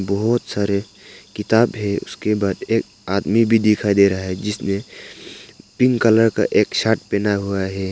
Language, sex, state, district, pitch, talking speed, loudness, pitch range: Hindi, male, Arunachal Pradesh, Papum Pare, 105 Hz, 160 wpm, -19 LUFS, 100-110 Hz